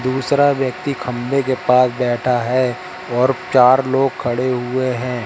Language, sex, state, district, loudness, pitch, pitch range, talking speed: Hindi, male, Madhya Pradesh, Katni, -17 LUFS, 130 Hz, 125-135 Hz, 150 wpm